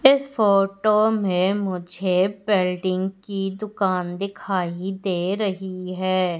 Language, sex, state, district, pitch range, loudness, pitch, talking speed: Hindi, female, Madhya Pradesh, Umaria, 185-200 Hz, -23 LUFS, 190 Hz, 105 wpm